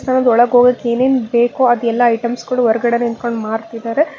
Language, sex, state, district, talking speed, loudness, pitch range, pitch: Kannada, female, Karnataka, Bangalore, 145 wpm, -15 LUFS, 235-250 Hz, 240 Hz